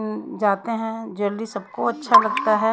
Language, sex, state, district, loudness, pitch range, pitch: Hindi, female, Haryana, Rohtak, -21 LUFS, 200-230 Hz, 220 Hz